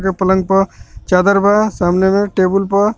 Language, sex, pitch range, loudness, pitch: Bhojpuri, male, 185-200 Hz, -14 LUFS, 195 Hz